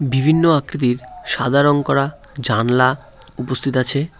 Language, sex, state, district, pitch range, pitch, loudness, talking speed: Bengali, male, West Bengal, Cooch Behar, 125-145 Hz, 140 Hz, -18 LUFS, 115 wpm